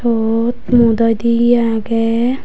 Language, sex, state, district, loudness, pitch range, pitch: Chakma, female, Tripura, Unakoti, -14 LUFS, 230-240 Hz, 230 Hz